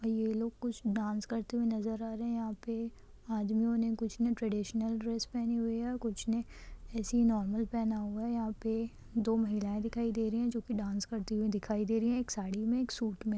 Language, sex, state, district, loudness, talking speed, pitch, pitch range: Hindi, female, Bihar, Lakhisarai, -35 LUFS, 235 wpm, 225 Hz, 215-230 Hz